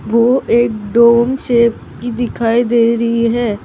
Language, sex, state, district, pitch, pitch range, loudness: Hindi, female, Maharashtra, Mumbai Suburban, 235 Hz, 230-240 Hz, -13 LUFS